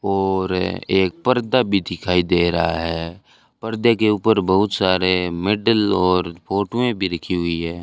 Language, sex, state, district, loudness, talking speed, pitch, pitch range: Hindi, male, Rajasthan, Bikaner, -19 LUFS, 160 wpm, 95 Hz, 85-105 Hz